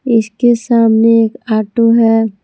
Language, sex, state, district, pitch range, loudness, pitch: Hindi, female, Jharkhand, Palamu, 220-235 Hz, -11 LUFS, 230 Hz